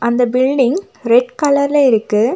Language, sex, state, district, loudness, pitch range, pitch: Tamil, female, Tamil Nadu, Nilgiris, -14 LUFS, 235-280 Hz, 250 Hz